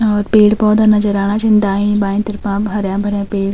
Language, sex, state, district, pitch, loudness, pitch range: Garhwali, female, Uttarakhand, Tehri Garhwal, 205 Hz, -14 LUFS, 200-210 Hz